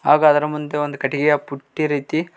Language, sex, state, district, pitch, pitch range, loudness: Kannada, male, Karnataka, Koppal, 150 Hz, 145-150 Hz, -19 LUFS